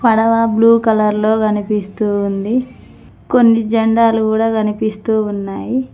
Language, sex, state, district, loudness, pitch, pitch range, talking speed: Telugu, female, Telangana, Mahabubabad, -15 LUFS, 220 Hz, 210-230 Hz, 110 wpm